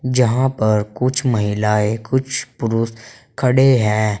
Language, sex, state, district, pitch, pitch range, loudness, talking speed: Hindi, male, Uttar Pradesh, Saharanpur, 115 Hz, 110-130 Hz, -17 LUFS, 115 wpm